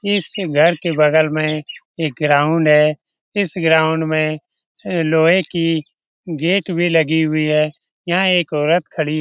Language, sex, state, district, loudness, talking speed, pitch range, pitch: Hindi, male, Bihar, Lakhisarai, -16 LUFS, 155 wpm, 155-175 Hz, 160 Hz